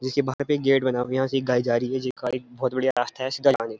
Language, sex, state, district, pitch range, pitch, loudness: Hindi, male, Uttarakhand, Uttarkashi, 125-135 Hz, 130 Hz, -24 LUFS